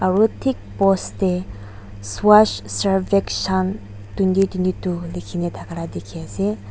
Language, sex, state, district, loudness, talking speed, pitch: Nagamese, female, Nagaland, Dimapur, -20 LUFS, 115 wpm, 180 Hz